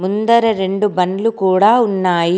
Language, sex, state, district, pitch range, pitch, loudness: Telugu, female, Telangana, Komaram Bheem, 185-225 Hz, 195 Hz, -14 LUFS